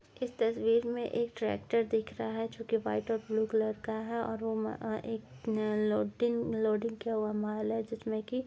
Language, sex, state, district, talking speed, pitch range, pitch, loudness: Hindi, female, Uttar Pradesh, Jyotiba Phule Nagar, 205 wpm, 220-230 Hz, 225 Hz, -33 LUFS